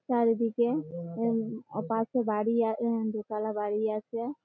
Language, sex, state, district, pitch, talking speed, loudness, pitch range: Bengali, female, West Bengal, Malda, 225 Hz, 95 wpm, -30 LUFS, 215-230 Hz